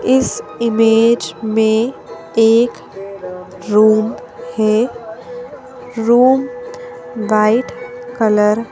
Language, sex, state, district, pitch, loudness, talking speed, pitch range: Hindi, female, Madhya Pradesh, Bhopal, 225 Hz, -14 LUFS, 70 wpm, 215-250 Hz